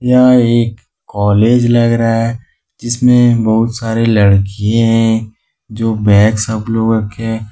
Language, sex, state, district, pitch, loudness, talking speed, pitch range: Hindi, male, Jharkhand, Ranchi, 115 Hz, -12 LUFS, 135 wpm, 110-115 Hz